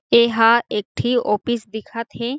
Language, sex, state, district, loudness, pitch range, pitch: Chhattisgarhi, female, Chhattisgarh, Jashpur, -19 LUFS, 220-240 Hz, 235 Hz